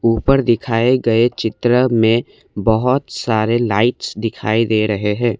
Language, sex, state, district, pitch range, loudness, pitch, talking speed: Hindi, male, Assam, Kamrup Metropolitan, 110-120 Hz, -16 LUFS, 115 Hz, 135 wpm